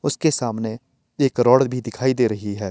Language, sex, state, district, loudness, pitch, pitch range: Hindi, male, Himachal Pradesh, Shimla, -20 LUFS, 125 Hz, 110-130 Hz